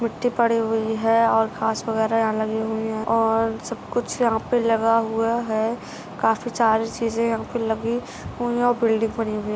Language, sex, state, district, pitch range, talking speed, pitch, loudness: Hindi, female, Maharashtra, Solapur, 220-230 Hz, 190 wpm, 225 Hz, -22 LUFS